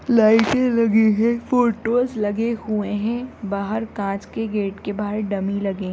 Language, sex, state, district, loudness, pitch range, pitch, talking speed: Hindi, female, Bihar, Madhepura, -21 LUFS, 205-230 Hz, 220 Hz, 160 wpm